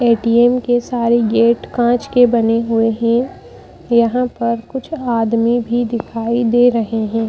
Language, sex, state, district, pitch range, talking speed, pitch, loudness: Hindi, female, Madhya Pradesh, Bhopal, 230-240 Hz, 150 wpm, 235 Hz, -15 LUFS